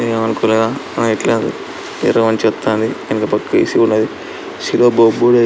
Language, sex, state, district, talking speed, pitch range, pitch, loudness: Telugu, male, Andhra Pradesh, Srikakulam, 90 wpm, 110-120 Hz, 115 Hz, -15 LUFS